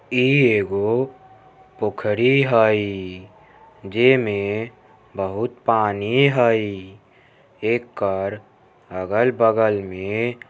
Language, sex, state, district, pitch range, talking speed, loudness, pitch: Maithili, male, Bihar, Samastipur, 100-120 Hz, 75 wpm, -20 LUFS, 110 Hz